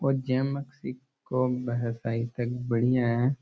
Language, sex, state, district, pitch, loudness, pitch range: Rajasthani, male, Rajasthan, Churu, 125 Hz, -29 LUFS, 120-130 Hz